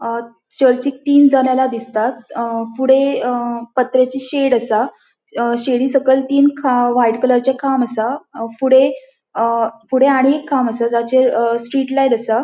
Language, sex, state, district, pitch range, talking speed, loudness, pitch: Konkani, female, Goa, North and South Goa, 235-265 Hz, 135 wpm, -16 LUFS, 255 Hz